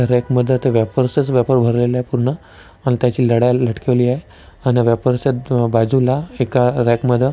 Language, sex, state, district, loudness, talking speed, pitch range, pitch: Marathi, male, Maharashtra, Nagpur, -16 LUFS, 165 wpm, 120-130 Hz, 125 Hz